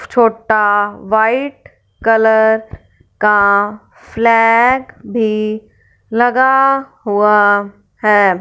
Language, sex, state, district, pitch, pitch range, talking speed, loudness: Hindi, female, Punjab, Fazilka, 220 Hz, 210-235 Hz, 65 wpm, -13 LUFS